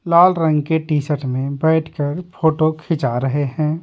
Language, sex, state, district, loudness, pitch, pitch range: Hindi, male, Bihar, Patna, -18 LUFS, 155 Hz, 145-160 Hz